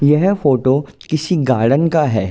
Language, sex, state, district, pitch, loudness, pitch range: Hindi, male, Uttar Pradesh, Ghazipur, 145 Hz, -15 LUFS, 130-160 Hz